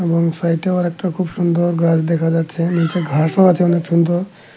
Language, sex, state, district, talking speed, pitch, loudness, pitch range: Bengali, male, Tripura, Unakoti, 155 wpm, 170 Hz, -17 LUFS, 165-180 Hz